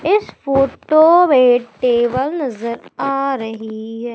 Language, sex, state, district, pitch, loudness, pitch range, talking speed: Hindi, female, Madhya Pradesh, Umaria, 260 Hz, -16 LUFS, 235-280 Hz, 115 wpm